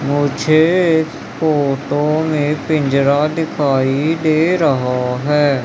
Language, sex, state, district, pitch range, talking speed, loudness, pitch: Hindi, male, Madhya Pradesh, Umaria, 140-155 Hz, 95 wpm, -15 LUFS, 150 Hz